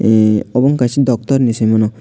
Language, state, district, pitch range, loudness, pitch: Kokborok, Tripura, West Tripura, 110-130 Hz, -13 LUFS, 115 Hz